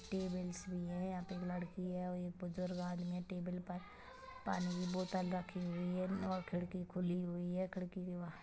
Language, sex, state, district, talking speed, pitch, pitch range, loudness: Hindi, female, Chhattisgarh, Kabirdham, 200 wpm, 180 Hz, 180-185 Hz, -43 LUFS